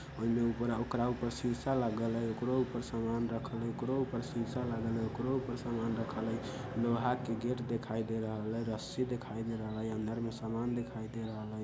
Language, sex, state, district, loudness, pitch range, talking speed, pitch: Bajjika, male, Bihar, Vaishali, -36 LUFS, 115-125 Hz, 210 wpm, 115 Hz